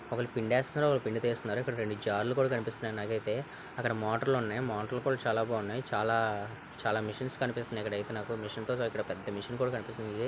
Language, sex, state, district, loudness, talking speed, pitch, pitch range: Telugu, male, Andhra Pradesh, Visakhapatnam, -33 LUFS, 170 wpm, 115 Hz, 110-125 Hz